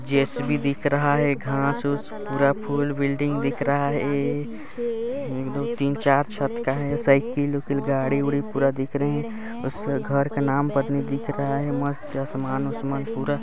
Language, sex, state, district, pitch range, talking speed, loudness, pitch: Hindi, male, Chhattisgarh, Sarguja, 140-145 Hz, 185 wpm, -24 LUFS, 140 Hz